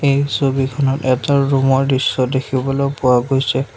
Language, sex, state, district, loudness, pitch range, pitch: Assamese, male, Assam, Sonitpur, -16 LUFS, 130-140 Hz, 135 Hz